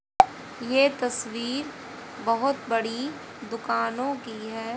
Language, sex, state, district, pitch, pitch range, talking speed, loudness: Hindi, female, Haryana, Charkhi Dadri, 245 Hz, 230-270 Hz, 90 wpm, -27 LUFS